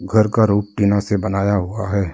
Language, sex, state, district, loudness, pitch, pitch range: Hindi, male, Arunachal Pradesh, Lower Dibang Valley, -18 LUFS, 100 Hz, 100-105 Hz